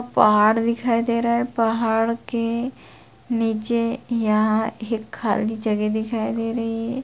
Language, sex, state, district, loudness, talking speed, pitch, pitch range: Hindi, female, Bihar, Lakhisarai, -22 LUFS, 135 wpm, 230 Hz, 220-235 Hz